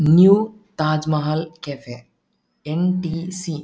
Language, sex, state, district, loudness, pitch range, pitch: Tulu, male, Karnataka, Dakshina Kannada, -20 LUFS, 150-180 Hz, 160 Hz